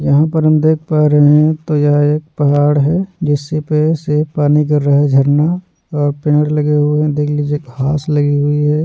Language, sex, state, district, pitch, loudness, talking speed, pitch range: Hindi, male, Odisha, Nuapada, 150 Hz, -13 LUFS, 210 wpm, 145-155 Hz